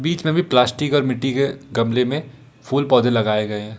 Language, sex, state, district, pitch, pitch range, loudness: Hindi, male, Jharkhand, Ranchi, 130 Hz, 120-140 Hz, -19 LUFS